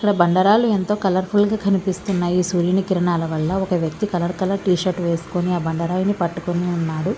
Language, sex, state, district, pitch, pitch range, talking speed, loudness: Telugu, female, Andhra Pradesh, Visakhapatnam, 180 Hz, 175-195 Hz, 265 wpm, -20 LUFS